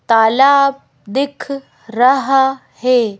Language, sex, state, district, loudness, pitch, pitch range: Hindi, female, Madhya Pradesh, Bhopal, -14 LUFS, 260 Hz, 225-275 Hz